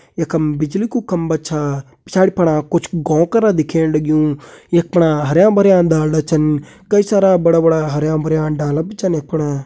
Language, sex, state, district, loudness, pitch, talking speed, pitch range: Kumaoni, male, Uttarakhand, Uttarkashi, -15 LUFS, 160 Hz, 185 wpm, 155-185 Hz